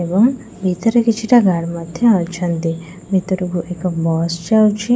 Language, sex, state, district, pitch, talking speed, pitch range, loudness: Odia, female, Odisha, Khordha, 180 Hz, 120 wpm, 170-220 Hz, -17 LUFS